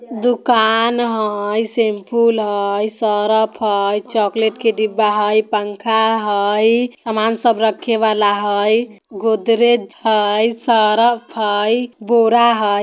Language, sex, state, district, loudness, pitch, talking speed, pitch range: Bajjika, female, Bihar, Vaishali, -16 LUFS, 220 Hz, 110 wpm, 210-230 Hz